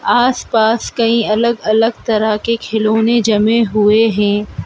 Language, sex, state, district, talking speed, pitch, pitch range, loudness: Hindi, male, Madhya Pradesh, Bhopal, 140 wpm, 220 Hz, 215-230 Hz, -14 LUFS